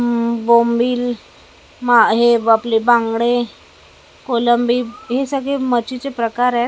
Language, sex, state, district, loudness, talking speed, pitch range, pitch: Marathi, female, Maharashtra, Mumbai Suburban, -16 LUFS, 115 wpm, 235-245 Hz, 240 Hz